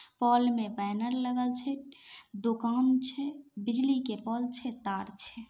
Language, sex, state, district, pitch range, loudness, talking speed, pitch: Maithili, female, Bihar, Samastipur, 225-260 Hz, -31 LUFS, 130 wpm, 245 Hz